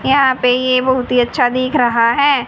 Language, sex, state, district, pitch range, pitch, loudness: Hindi, female, Haryana, Jhajjar, 245-265 Hz, 255 Hz, -14 LUFS